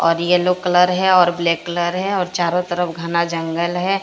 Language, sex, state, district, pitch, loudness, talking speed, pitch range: Hindi, female, Odisha, Sambalpur, 175 Hz, -18 LUFS, 210 wpm, 170-180 Hz